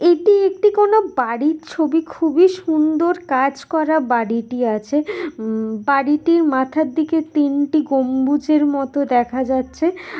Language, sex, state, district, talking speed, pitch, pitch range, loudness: Bengali, female, West Bengal, Dakshin Dinajpur, 120 wpm, 300 Hz, 260-330 Hz, -18 LUFS